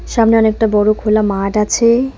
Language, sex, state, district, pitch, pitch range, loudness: Bengali, female, West Bengal, Cooch Behar, 215 Hz, 210-225 Hz, -13 LUFS